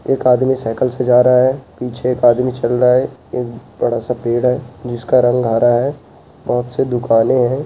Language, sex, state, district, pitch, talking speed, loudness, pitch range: Hindi, male, Uttarakhand, Uttarkashi, 125 Hz, 195 wpm, -15 LUFS, 120-125 Hz